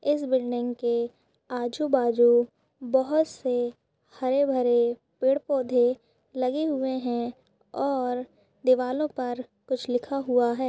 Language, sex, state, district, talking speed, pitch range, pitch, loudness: Hindi, female, Chhattisgarh, Balrampur, 105 wpm, 240-265 Hz, 255 Hz, -26 LUFS